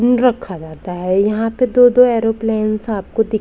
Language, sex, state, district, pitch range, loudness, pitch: Hindi, male, Maharashtra, Gondia, 200-245 Hz, -15 LUFS, 220 Hz